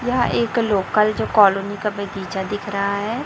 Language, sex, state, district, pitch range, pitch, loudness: Hindi, female, Chhattisgarh, Raipur, 200-220 Hz, 205 Hz, -20 LUFS